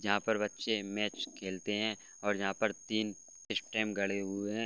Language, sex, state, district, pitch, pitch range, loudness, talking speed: Hindi, male, Bihar, Gopalganj, 105 Hz, 100-110 Hz, -35 LUFS, 180 wpm